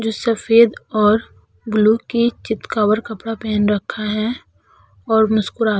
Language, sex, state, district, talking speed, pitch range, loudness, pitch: Hindi, female, Uttar Pradesh, Budaun, 135 wpm, 215-225 Hz, -18 LUFS, 220 Hz